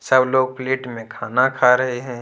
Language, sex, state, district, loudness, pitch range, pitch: Hindi, male, Jharkhand, Ranchi, -18 LUFS, 125-130 Hz, 130 Hz